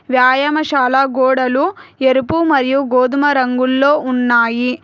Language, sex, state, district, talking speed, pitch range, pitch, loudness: Telugu, female, Telangana, Hyderabad, 85 wpm, 255-280 Hz, 260 Hz, -14 LUFS